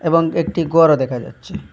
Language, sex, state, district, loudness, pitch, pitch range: Bengali, male, Assam, Hailakandi, -16 LUFS, 165 Hz, 150-165 Hz